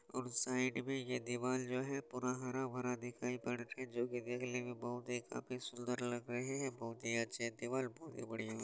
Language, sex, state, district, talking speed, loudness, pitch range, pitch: Hindi, male, Bihar, Supaul, 220 wpm, -42 LUFS, 120-130 Hz, 125 Hz